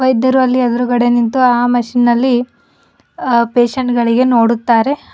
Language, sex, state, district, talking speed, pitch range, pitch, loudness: Kannada, female, Karnataka, Bidar, 115 wpm, 235-255 Hz, 245 Hz, -13 LUFS